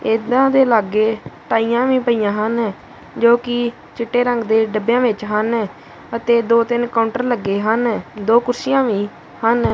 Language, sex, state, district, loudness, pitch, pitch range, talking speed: Punjabi, female, Punjab, Kapurthala, -17 LUFS, 230 Hz, 220-240 Hz, 155 wpm